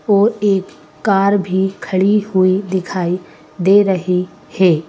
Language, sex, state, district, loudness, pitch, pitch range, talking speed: Hindi, female, Madhya Pradesh, Bhopal, -16 LUFS, 190 Hz, 180-200 Hz, 125 wpm